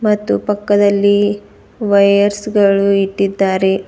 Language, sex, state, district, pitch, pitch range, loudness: Kannada, female, Karnataka, Bidar, 200 Hz, 195-205 Hz, -13 LUFS